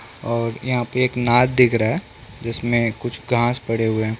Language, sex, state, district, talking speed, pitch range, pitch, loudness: Hindi, male, Chhattisgarh, Bilaspur, 215 wpm, 115-125 Hz, 120 Hz, -20 LUFS